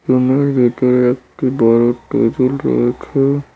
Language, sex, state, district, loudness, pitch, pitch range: Bengali, male, West Bengal, Cooch Behar, -15 LUFS, 125 Hz, 120-135 Hz